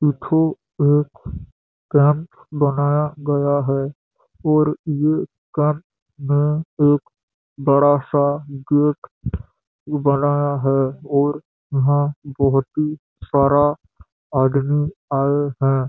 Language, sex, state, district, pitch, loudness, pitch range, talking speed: Hindi, male, Chhattisgarh, Bastar, 145 Hz, -19 LUFS, 140-150 Hz, 85 wpm